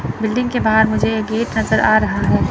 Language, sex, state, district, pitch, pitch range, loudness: Hindi, female, Chandigarh, Chandigarh, 220 Hz, 220-235 Hz, -16 LUFS